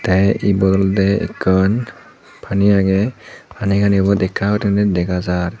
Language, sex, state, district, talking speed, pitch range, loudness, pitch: Chakma, male, Tripura, Dhalai, 140 wpm, 95-100 Hz, -16 LUFS, 100 Hz